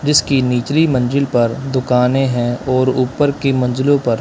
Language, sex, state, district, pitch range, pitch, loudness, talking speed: Hindi, male, Punjab, Kapurthala, 125-140 Hz, 130 Hz, -15 LUFS, 155 wpm